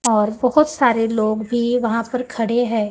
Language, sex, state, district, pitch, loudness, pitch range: Hindi, female, Maharashtra, Gondia, 235 Hz, -18 LUFS, 225-250 Hz